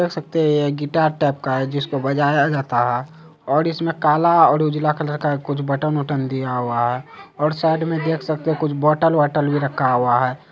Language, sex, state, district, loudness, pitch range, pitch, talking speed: Hindi, male, Bihar, Araria, -19 LUFS, 140-155 Hz, 150 Hz, 205 wpm